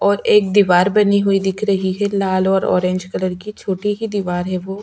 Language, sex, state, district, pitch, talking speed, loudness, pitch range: Hindi, female, Chhattisgarh, Sukma, 195 Hz, 235 wpm, -17 LUFS, 185-205 Hz